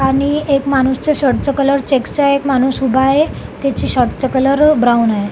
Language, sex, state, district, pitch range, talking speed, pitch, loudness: Marathi, female, Maharashtra, Solapur, 260-280 Hz, 225 wpm, 270 Hz, -14 LUFS